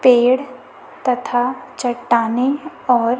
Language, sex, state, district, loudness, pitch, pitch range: Hindi, female, Chhattisgarh, Raipur, -18 LUFS, 250 Hz, 245-260 Hz